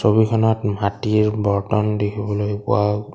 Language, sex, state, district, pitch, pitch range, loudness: Assamese, male, Assam, Kamrup Metropolitan, 105 Hz, 105-110 Hz, -20 LUFS